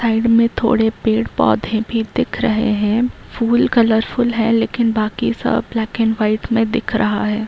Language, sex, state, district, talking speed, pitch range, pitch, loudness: Hindi, female, Bihar, East Champaran, 175 wpm, 220-230 Hz, 225 Hz, -17 LUFS